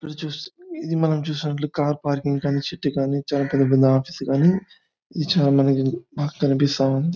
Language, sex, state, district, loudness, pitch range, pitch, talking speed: Telugu, male, Andhra Pradesh, Anantapur, -21 LUFS, 140-155 Hz, 145 Hz, 135 wpm